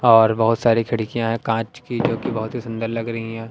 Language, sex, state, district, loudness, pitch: Hindi, male, Haryana, Jhajjar, -21 LUFS, 115 Hz